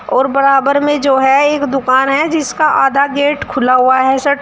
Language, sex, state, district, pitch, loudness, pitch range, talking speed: Hindi, female, Uttar Pradesh, Shamli, 275 Hz, -12 LUFS, 265-285 Hz, 215 wpm